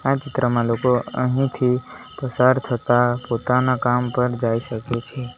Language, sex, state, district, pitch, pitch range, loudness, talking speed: Gujarati, male, Gujarat, Valsad, 125 Hz, 120-130 Hz, -21 LUFS, 135 wpm